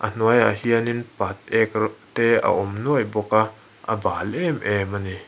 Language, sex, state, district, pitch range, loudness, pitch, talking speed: Mizo, male, Mizoram, Aizawl, 105-115 Hz, -22 LUFS, 110 Hz, 150 wpm